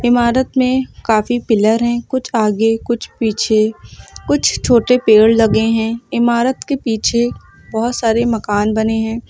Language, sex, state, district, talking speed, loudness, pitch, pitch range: Hindi, female, Uttar Pradesh, Lucknow, 140 wpm, -15 LUFS, 230 Hz, 220-245 Hz